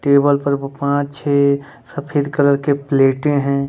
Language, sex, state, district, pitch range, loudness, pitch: Hindi, male, Jharkhand, Ranchi, 140-145 Hz, -17 LUFS, 140 Hz